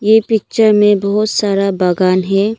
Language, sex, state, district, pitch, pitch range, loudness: Hindi, female, Arunachal Pradesh, Longding, 205 Hz, 195-215 Hz, -13 LUFS